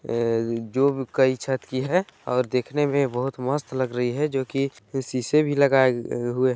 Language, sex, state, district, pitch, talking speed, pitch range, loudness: Hindi, male, Chhattisgarh, Bilaspur, 130 Hz, 190 wpm, 125-140 Hz, -24 LUFS